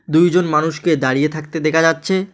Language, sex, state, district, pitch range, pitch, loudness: Bengali, male, West Bengal, Alipurduar, 155-175 Hz, 160 Hz, -16 LUFS